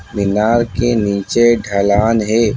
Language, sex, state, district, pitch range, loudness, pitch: Hindi, male, Bihar, Bhagalpur, 100-115 Hz, -14 LUFS, 110 Hz